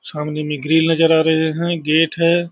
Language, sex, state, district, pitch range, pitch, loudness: Hindi, male, Bihar, Saharsa, 155-165 Hz, 160 Hz, -16 LUFS